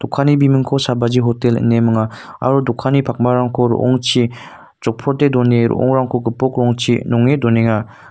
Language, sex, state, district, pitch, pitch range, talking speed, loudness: Garo, male, Meghalaya, North Garo Hills, 125 Hz, 120-130 Hz, 125 wpm, -15 LUFS